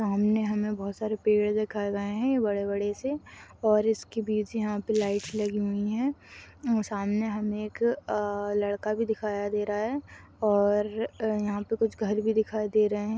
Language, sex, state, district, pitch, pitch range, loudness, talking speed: Hindi, female, Chhattisgarh, Kabirdham, 210 Hz, 205-220 Hz, -28 LUFS, 180 wpm